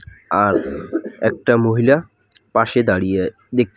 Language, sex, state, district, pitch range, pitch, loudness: Bengali, male, West Bengal, Alipurduar, 95-125 Hz, 115 Hz, -18 LUFS